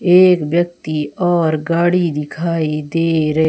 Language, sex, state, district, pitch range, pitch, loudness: Hindi, female, Madhya Pradesh, Umaria, 155-175 Hz, 165 Hz, -16 LUFS